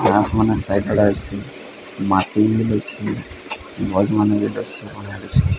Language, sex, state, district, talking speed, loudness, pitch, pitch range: Odia, male, Odisha, Sambalpur, 75 wpm, -19 LUFS, 105 Hz, 100-105 Hz